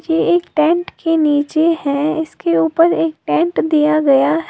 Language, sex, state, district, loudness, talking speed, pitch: Hindi, female, Uttar Pradesh, Lalitpur, -15 LUFS, 175 wpm, 290 Hz